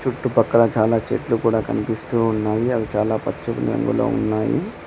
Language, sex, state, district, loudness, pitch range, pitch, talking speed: Telugu, male, Telangana, Mahabubabad, -20 LUFS, 110-120 Hz, 115 Hz, 145 wpm